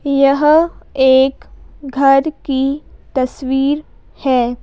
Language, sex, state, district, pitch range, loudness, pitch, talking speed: Hindi, female, Madhya Pradesh, Bhopal, 265-290 Hz, -15 LUFS, 275 Hz, 80 wpm